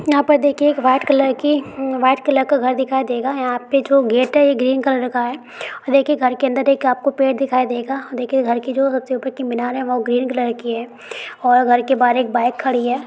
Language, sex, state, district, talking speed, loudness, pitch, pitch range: Hindi, female, Bihar, Bhagalpur, 260 wpm, -17 LUFS, 260 Hz, 245-275 Hz